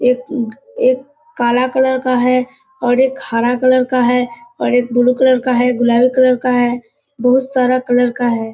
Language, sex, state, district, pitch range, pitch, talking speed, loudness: Hindi, female, Bihar, Kishanganj, 245-260 Hz, 250 Hz, 190 wpm, -15 LUFS